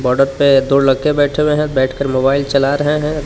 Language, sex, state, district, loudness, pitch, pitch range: Hindi, male, Jharkhand, Palamu, -14 LUFS, 140 Hz, 135-150 Hz